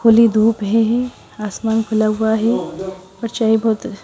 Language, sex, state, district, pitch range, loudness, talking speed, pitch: Hindi, female, Haryana, Charkhi Dadri, 215-230 Hz, -17 LUFS, 150 wpm, 220 Hz